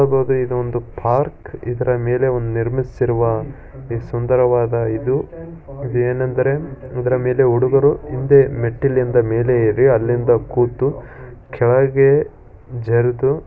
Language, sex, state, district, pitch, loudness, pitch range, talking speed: Kannada, male, Karnataka, Shimoga, 125 Hz, -17 LUFS, 120-135 Hz, 100 wpm